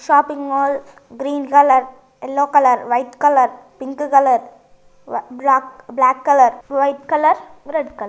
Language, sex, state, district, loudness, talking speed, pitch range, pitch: Telugu, female, Telangana, Nalgonda, -16 LUFS, 140 wpm, 250-285 Hz, 270 Hz